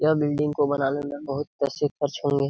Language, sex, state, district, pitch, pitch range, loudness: Hindi, male, Bihar, Jamui, 145 Hz, 140-150 Hz, -25 LUFS